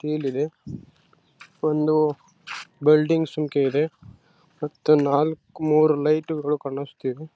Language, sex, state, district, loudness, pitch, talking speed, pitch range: Kannada, male, Karnataka, Raichur, -22 LUFS, 150 Hz, 105 wpm, 145-155 Hz